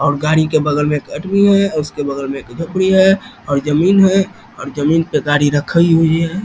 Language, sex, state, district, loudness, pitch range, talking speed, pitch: Hindi, male, Bihar, East Champaran, -14 LUFS, 145-190 Hz, 205 wpm, 155 Hz